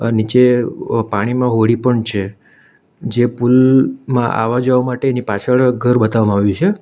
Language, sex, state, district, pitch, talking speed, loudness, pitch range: Gujarati, male, Gujarat, Valsad, 120 Hz, 130 wpm, -15 LUFS, 110-125 Hz